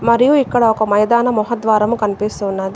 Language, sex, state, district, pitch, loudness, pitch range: Telugu, female, Telangana, Adilabad, 220 Hz, -15 LUFS, 210-235 Hz